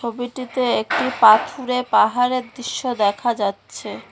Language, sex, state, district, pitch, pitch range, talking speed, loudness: Bengali, female, West Bengal, Cooch Behar, 245 Hz, 225-250 Hz, 100 wpm, -19 LUFS